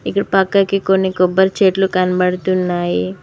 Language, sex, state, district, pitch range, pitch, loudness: Telugu, female, Telangana, Mahabubabad, 180-195 Hz, 185 Hz, -15 LUFS